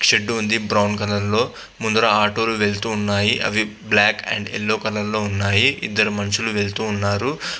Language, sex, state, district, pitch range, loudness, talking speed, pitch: Telugu, male, Andhra Pradesh, Visakhapatnam, 105-110 Hz, -19 LUFS, 160 wpm, 105 Hz